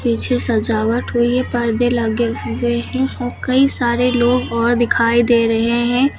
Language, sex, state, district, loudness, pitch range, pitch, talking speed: Hindi, female, Uttar Pradesh, Lucknow, -16 LUFS, 235-245 Hz, 240 Hz, 155 wpm